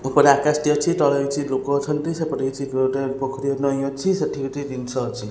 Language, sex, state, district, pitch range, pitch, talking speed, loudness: Odia, male, Odisha, Khordha, 135-145 Hz, 140 Hz, 190 wpm, -22 LUFS